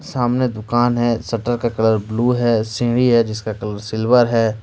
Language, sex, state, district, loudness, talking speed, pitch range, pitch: Hindi, male, Jharkhand, Ranchi, -18 LUFS, 180 wpm, 110-120 Hz, 115 Hz